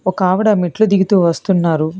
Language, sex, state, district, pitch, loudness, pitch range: Telugu, female, Telangana, Hyderabad, 185 Hz, -14 LUFS, 170-200 Hz